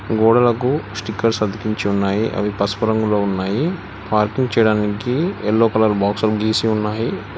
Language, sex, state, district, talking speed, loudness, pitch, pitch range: Telugu, male, Telangana, Hyderabad, 120 wpm, -18 LUFS, 110 Hz, 105-115 Hz